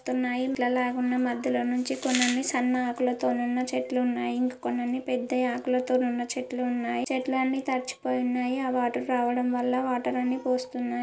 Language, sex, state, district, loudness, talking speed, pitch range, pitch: Telugu, female, Andhra Pradesh, Guntur, -27 LUFS, 190 wpm, 245-255 Hz, 250 Hz